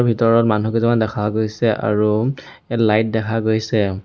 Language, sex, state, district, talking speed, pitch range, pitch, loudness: Assamese, male, Assam, Sonitpur, 150 wpm, 105-115 Hz, 110 Hz, -18 LUFS